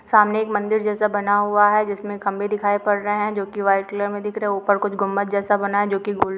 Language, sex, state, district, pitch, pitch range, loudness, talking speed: Hindi, female, Rajasthan, Nagaur, 205 Hz, 200-210 Hz, -21 LUFS, 275 wpm